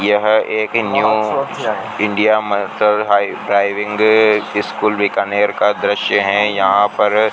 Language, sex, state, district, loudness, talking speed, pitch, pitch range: Hindi, male, Rajasthan, Bikaner, -15 LUFS, 105 wpm, 105 Hz, 100-110 Hz